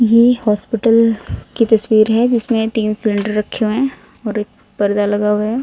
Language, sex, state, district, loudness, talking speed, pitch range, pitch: Hindi, female, Haryana, Rohtak, -15 LUFS, 180 wpm, 210-230 Hz, 220 Hz